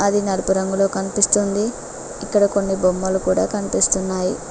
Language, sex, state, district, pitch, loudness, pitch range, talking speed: Telugu, female, Telangana, Mahabubabad, 195 Hz, -19 LUFS, 190-200 Hz, 120 wpm